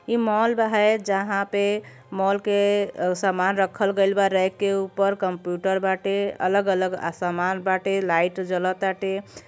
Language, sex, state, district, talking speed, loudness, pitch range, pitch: Bhojpuri, male, Uttar Pradesh, Deoria, 150 wpm, -23 LUFS, 185-200 Hz, 195 Hz